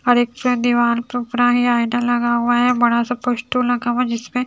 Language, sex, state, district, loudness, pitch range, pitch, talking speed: Hindi, female, Haryana, Charkhi Dadri, -18 LUFS, 240-245 Hz, 245 Hz, 135 wpm